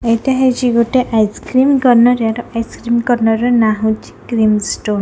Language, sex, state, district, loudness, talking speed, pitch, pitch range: Odia, female, Odisha, Khordha, -14 LUFS, 165 wpm, 235 Hz, 220-245 Hz